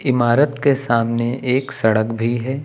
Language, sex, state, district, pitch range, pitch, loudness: Hindi, male, Uttar Pradesh, Lucknow, 115-135 Hz, 125 Hz, -18 LUFS